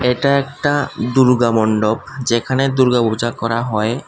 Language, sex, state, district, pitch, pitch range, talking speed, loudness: Bengali, male, Tripura, West Tripura, 125 Hz, 115-135 Hz, 130 wpm, -16 LUFS